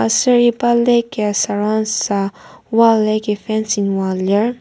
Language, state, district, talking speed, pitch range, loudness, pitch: Ao, Nagaland, Kohima, 145 wpm, 200-230 Hz, -16 LUFS, 215 Hz